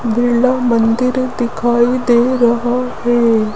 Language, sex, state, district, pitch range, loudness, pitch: Hindi, female, Rajasthan, Jaipur, 235-250 Hz, -14 LUFS, 240 Hz